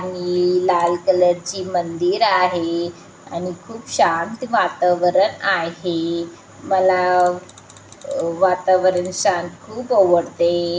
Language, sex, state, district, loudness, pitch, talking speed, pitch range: Marathi, female, Maharashtra, Chandrapur, -19 LUFS, 180 Hz, 100 wpm, 175-185 Hz